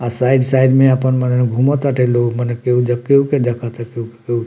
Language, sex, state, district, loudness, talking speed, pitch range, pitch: Bhojpuri, male, Bihar, Muzaffarpur, -15 LUFS, 185 wpm, 120-130 Hz, 125 Hz